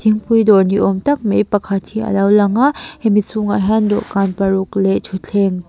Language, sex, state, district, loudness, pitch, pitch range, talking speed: Mizo, female, Mizoram, Aizawl, -15 LUFS, 205 Hz, 195-215 Hz, 190 wpm